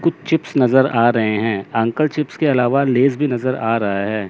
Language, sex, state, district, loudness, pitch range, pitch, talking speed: Hindi, male, Chandigarh, Chandigarh, -17 LUFS, 115-140 Hz, 125 Hz, 225 wpm